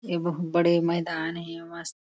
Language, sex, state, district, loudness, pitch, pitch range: Chhattisgarhi, female, Chhattisgarh, Korba, -26 LUFS, 170 Hz, 165-170 Hz